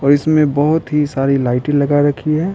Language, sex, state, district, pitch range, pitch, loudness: Hindi, male, Bihar, Patna, 140-155 Hz, 145 Hz, -15 LUFS